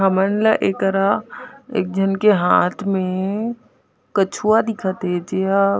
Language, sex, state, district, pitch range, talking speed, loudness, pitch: Chhattisgarhi, female, Chhattisgarh, Jashpur, 190-210 Hz, 135 wpm, -19 LUFS, 195 Hz